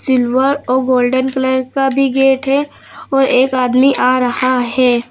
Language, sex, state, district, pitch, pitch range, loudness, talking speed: Hindi, female, Uttar Pradesh, Lucknow, 260 Hz, 255-270 Hz, -13 LUFS, 165 wpm